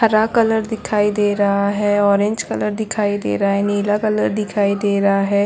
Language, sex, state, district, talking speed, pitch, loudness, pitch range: Hindi, female, Chhattisgarh, Korba, 200 wpm, 205 Hz, -17 LUFS, 200-215 Hz